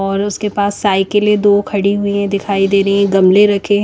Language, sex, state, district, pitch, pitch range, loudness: Hindi, female, Chandigarh, Chandigarh, 200 Hz, 195-205 Hz, -13 LUFS